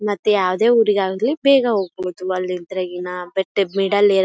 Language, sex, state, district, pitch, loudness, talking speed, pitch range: Kannada, female, Karnataka, Bellary, 195 Hz, -19 LUFS, 170 wpm, 185-210 Hz